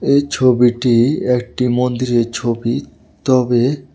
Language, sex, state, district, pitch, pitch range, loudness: Bengali, male, Tripura, West Tripura, 125 Hz, 120-130 Hz, -16 LUFS